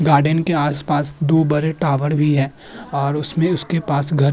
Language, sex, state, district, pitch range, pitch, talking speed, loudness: Hindi, male, Uttar Pradesh, Muzaffarnagar, 145-160 Hz, 150 Hz, 205 wpm, -18 LUFS